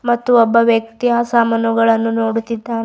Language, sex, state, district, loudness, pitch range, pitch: Kannada, female, Karnataka, Bidar, -15 LUFS, 225-235 Hz, 230 Hz